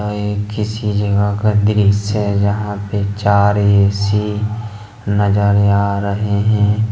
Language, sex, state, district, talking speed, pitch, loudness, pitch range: Hindi, male, Jharkhand, Ranchi, 120 wpm, 105 Hz, -16 LUFS, 100-105 Hz